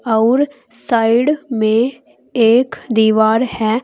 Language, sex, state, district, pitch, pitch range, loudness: Hindi, female, Uttar Pradesh, Saharanpur, 230 Hz, 220-255 Hz, -15 LUFS